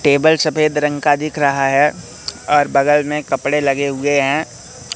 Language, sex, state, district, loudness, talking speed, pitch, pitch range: Hindi, male, Madhya Pradesh, Katni, -16 LUFS, 170 wpm, 145 Hz, 140-150 Hz